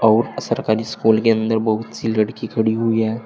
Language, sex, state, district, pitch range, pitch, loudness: Hindi, male, Uttar Pradesh, Saharanpur, 110-115 Hz, 110 Hz, -19 LUFS